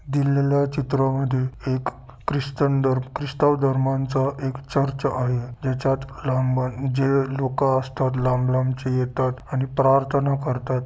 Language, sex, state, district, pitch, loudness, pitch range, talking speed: Marathi, male, Maharashtra, Sindhudurg, 135 Hz, -23 LUFS, 130-140 Hz, 115 wpm